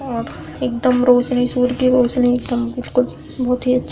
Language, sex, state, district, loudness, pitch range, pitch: Hindi, female, Uttar Pradesh, Hamirpur, -18 LUFS, 245-255 Hz, 250 Hz